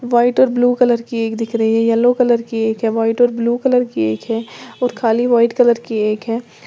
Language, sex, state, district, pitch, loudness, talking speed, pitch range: Hindi, female, Uttar Pradesh, Lalitpur, 235 Hz, -16 LUFS, 245 wpm, 225-245 Hz